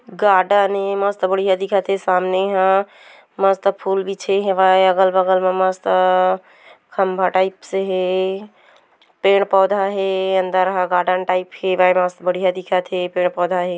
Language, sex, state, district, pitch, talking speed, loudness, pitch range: Hindi, female, Chhattisgarh, Korba, 190 Hz, 140 wpm, -17 LUFS, 185-195 Hz